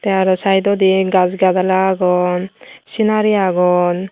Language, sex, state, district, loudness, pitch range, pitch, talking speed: Chakma, female, Tripura, West Tripura, -15 LUFS, 180-195 Hz, 190 Hz, 115 wpm